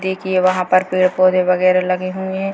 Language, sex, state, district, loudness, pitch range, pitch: Hindi, female, Bihar, Purnia, -16 LUFS, 185-190 Hz, 185 Hz